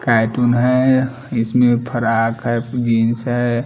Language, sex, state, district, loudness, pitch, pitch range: Hindi, male, Bihar, Patna, -17 LUFS, 120 Hz, 115-125 Hz